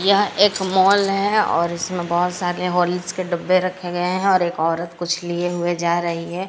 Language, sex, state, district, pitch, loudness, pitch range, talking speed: Hindi, female, Odisha, Sambalpur, 180 Hz, -20 LUFS, 175-190 Hz, 210 wpm